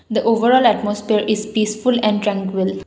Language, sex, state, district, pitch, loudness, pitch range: English, female, Assam, Kamrup Metropolitan, 215 Hz, -17 LUFS, 205-225 Hz